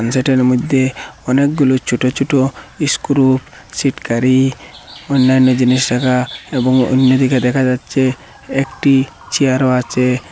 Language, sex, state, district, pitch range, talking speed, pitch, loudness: Bengali, male, Assam, Hailakandi, 125-135 Hz, 105 wpm, 130 Hz, -14 LUFS